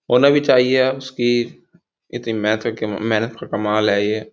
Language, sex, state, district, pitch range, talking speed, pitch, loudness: Hindi, male, Uttar Pradesh, Gorakhpur, 110-125 Hz, 165 wpm, 115 Hz, -18 LUFS